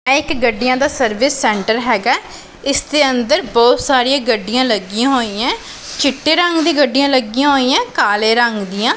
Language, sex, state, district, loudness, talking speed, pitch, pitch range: Punjabi, female, Punjab, Pathankot, -14 LUFS, 165 wpm, 260 Hz, 240-285 Hz